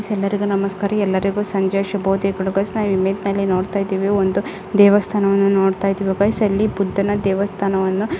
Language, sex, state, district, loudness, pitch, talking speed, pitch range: Kannada, female, Karnataka, Gulbarga, -18 LUFS, 195 Hz, 125 wpm, 195-205 Hz